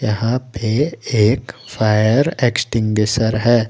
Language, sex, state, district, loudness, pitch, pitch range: Hindi, male, Jharkhand, Garhwa, -17 LUFS, 115 Hz, 110-125 Hz